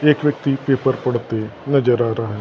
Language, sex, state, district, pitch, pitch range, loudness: Hindi, male, Maharashtra, Gondia, 130 Hz, 115-140 Hz, -19 LUFS